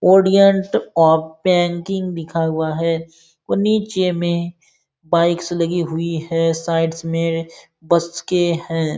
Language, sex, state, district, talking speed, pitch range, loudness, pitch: Hindi, male, Bihar, Supaul, 120 wpm, 165-175 Hz, -18 LUFS, 170 Hz